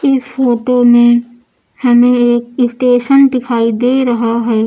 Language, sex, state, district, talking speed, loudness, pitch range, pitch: Hindi, female, Uttar Pradesh, Lucknow, 130 wpm, -11 LUFS, 240-255 Hz, 245 Hz